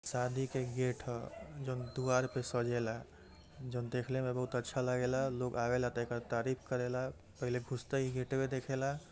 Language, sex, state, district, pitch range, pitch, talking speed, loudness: Hindi, male, Uttar Pradesh, Gorakhpur, 120-130 Hz, 125 Hz, 165 wpm, -37 LUFS